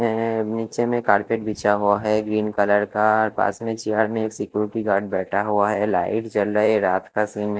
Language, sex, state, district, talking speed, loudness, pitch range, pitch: Hindi, male, Chhattisgarh, Raipur, 215 wpm, -21 LUFS, 105-110 Hz, 105 Hz